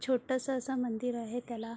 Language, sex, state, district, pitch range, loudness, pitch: Marathi, female, Maharashtra, Sindhudurg, 235-260 Hz, -34 LUFS, 245 Hz